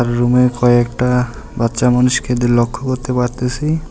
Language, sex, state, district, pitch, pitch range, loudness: Bengali, male, West Bengal, Alipurduar, 125 Hz, 120-125 Hz, -15 LUFS